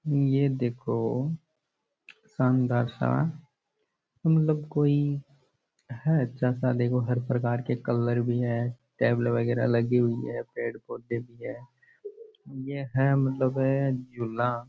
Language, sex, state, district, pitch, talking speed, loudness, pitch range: Rajasthani, male, Rajasthan, Churu, 130 Hz, 120 wpm, -27 LUFS, 120-140 Hz